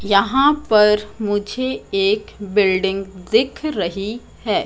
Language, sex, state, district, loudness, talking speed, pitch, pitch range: Hindi, female, Madhya Pradesh, Katni, -18 LUFS, 105 wpm, 210 Hz, 195-230 Hz